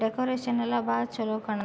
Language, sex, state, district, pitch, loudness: Kannada, female, Karnataka, Belgaum, 220 Hz, -29 LUFS